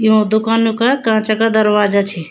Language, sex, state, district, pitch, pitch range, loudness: Garhwali, female, Uttarakhand, Tehri Garhwal, 220 Hz, 210-225 Hz, -14 LUFS